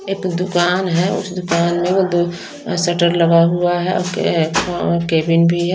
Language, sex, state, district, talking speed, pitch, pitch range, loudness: Hindi, female, Odisha, Nuapada, 190 wpm, 175 Hz, 170-180 Hz, -16 LUFS